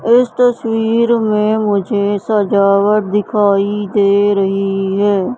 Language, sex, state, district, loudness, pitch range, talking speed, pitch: Hindi, female, Madhya Pradesh, Katni, -14 LUFS, 200-225 Hz, 100 wpm, 205 Hz